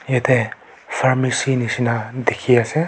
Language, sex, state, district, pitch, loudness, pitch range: Nagamese, male, Nagaland, Kohima, 125 Hz, -19 LUFS, 120-130 Hz